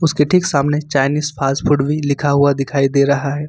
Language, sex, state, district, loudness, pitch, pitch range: Hindi, male, Jharkhand, Ranchi, -16 LUFS, 140 Hz, 140-150 Hz